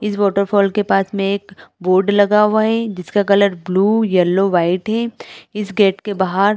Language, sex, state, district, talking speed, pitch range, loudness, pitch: Hindi, female, Chhattisgarh, Bilaspur, 190 wpm, 190-210 Hz, -16 LUFS, 200 Hz